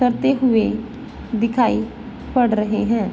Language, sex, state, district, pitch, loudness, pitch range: Hindi, female, Uttar Pradesh, Varanasi, 235 Hz, -19 LUFS, 225-250 Hz